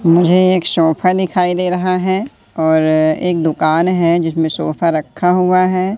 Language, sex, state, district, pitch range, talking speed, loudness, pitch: Hindi, male, Madhya Pradesh, Katni, 160-185 Hz, 160 wpm, -14 LUFS, 180 Hz